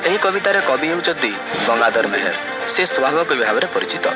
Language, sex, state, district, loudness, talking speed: Odia, male, Odisha, Malkangiri, -16 LUFS, 145 wpm